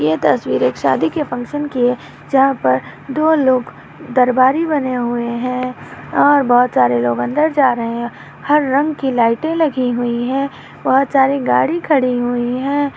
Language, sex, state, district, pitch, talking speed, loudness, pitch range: Hindi, female, Maharashtra, Pune, 255 Hz, 170 wpm, -16 LUFS, 245-285 Hz